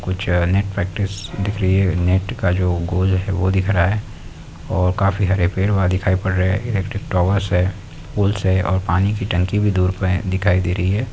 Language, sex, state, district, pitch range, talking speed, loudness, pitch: Hindi, male, Uttar Pradesh, Deoria, 90-100 Hz, 215 wpm, -19 LUFS, 95 Hz